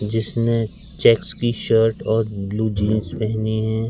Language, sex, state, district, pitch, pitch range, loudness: Hindi, male, Madhya Pradesh, Katni, 110 Hz, 110-115 Hz, -20 LUFS